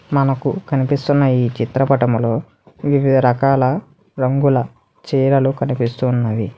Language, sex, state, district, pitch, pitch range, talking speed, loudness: Telugu, male, Telangana, Hyderabad, 135 Hz, 125-140 Hz, 80 wpm, -17 LUFS